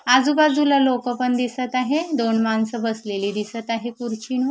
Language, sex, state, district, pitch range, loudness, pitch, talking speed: Marathi, female, Maharashtra, Mumbai Suburban, 225-260 Hz, -21 LUFS, 245 Hz, 145 wpm